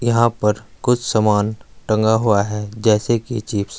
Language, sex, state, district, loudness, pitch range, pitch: Hindi, male, Uttar Pradesh, Saharanpur, -18 LUFS, 105-115 Hz, 110 Hz